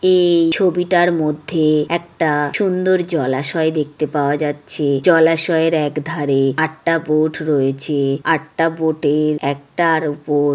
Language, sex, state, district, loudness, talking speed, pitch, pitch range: Bengali, female, West Bengal, Jhargram, -17 LUFS, 110 wpm, 155 Hz, 145-165 Hz